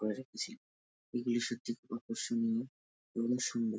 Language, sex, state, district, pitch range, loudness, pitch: Bengali, male, West Bengal, Jalpaiguri, 105-120 Hz, -37 LUFS, 115 Hz